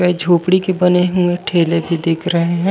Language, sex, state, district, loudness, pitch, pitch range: Chhattisgarhi, male, Chhattisgarh, Raigarh, -15 LUFS, 175 Hz, 170-180 Hz